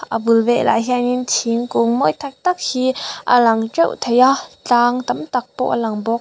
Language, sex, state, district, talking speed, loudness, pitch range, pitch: Mizo, female, Mizoram, Aizawl, 205 wpm, -17 LUFS, 230-255 Hz, 245 Hz